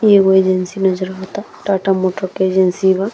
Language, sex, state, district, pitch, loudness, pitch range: Bhojpuri, female, Uttar Pradesh, Deoria, 190 Hz, -15 LUFS, 185-195 Hz